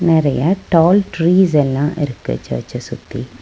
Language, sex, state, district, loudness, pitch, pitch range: Tamil, female, Tamil Nadu, Nilgiris, -16 LUFS, 150 Hz, 125-170 Hz